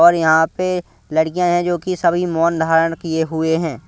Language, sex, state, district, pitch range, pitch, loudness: Hindi, male, Punjab, Kapurthala, 160-175 Hz, 165 Hz, -17 LUFS